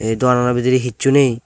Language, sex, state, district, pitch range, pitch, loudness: Chakma, male, Tripura, Dhalai, 120-130 Hz, 125 Hz, -16 LUFS